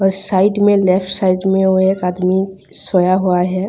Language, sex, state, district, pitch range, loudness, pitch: Hindi, female, Bihar, Darbhanga, 185-195 Hz, -14 LUFS, 190 Hz